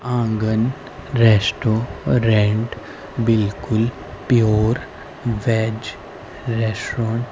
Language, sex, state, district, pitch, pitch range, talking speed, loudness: Hindi, female, Haryana, Rohtak, 115 Hz, 110-120 Hz, 55 wpm, -19 LUFS